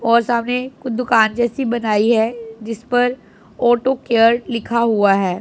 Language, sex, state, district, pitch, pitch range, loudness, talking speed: Hindi, female, Punjab, Pathankot, 235 Hz, 225-245 Hz, -17 LUFS, 145 wpm